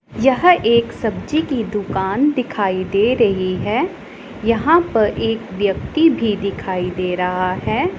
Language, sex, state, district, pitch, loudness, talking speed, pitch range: Hindi, female, Punjab, Pathankot, 215 Hz, -18 LUFS, 135 wpm, 190-255 Hz